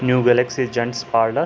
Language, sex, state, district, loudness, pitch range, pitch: Hindi, male, Uttar Pradesh, Hamirpur, -19 LUFS, 120-125 Hz, 125 Hz